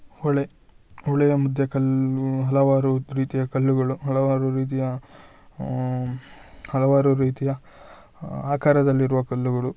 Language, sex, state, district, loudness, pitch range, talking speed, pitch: Kannada, male, Karnataka, Shimoga, -22 LUFS, 130-140 Hz, 85 wpm, 135 Hz